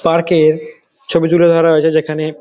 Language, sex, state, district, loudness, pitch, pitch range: Bengali, male, West Bengal, Dakshin Dinajpur, -12 LUFS, 160 Hz, 155-165 Hz